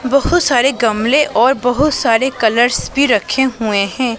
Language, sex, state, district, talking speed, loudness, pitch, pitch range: Hindi, female, Punjab, Pathankot, 155 wpm, -14 LUFS, 250 Hz, 230-275 Hz